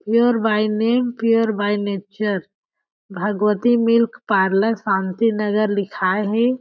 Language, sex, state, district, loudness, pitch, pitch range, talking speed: Chhattisgarhi, female, Chhattisgarh, Jashpur, -19 LUFS, 215 Hz, 205-230 Hz, 120 wpm